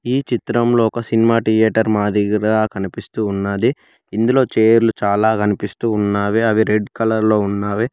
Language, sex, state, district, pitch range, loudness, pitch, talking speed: Telugu, male, Telangana, Hyderabad, 105-115 Hz, -17 LUFS, 110 Hz, 135 wpm